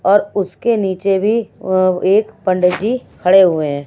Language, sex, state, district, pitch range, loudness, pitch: Hindi, female, Bihar, West Champaran, 185-210 Hz, -15 LUFS, 195 Hz